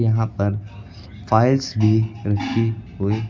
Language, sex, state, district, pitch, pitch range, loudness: Hindi, male, Uttar Pradesh, Lucknow, 110 Hz, 105-115 Hz, -20 LUFS